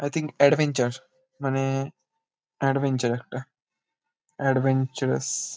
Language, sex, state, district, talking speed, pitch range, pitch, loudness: Bengali, male, West Bengal, Kolkata, 85 wpm, 130-155 Hz, 135 Hz, -25 LUFS